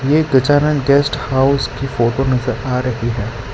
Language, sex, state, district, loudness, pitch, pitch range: Hindi, male, Gujarat, Valsad, -16 LUFS, 130 Hz, 120-140 Hz